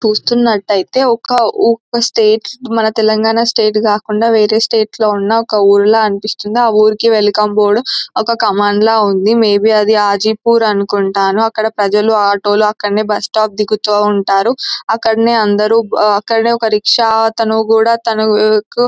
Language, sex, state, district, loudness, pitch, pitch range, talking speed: Telugu, female, Telangana, Nalgonda, -12 LUFS, 215 Hz, 210-225 Hz, 125 wpm